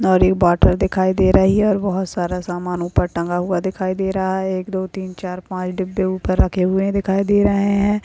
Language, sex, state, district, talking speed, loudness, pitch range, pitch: Hindi, female, Maharashtra, Sindhudurg, 230 wpm, -18 LUFS, 180-195 Hz, 190 Hz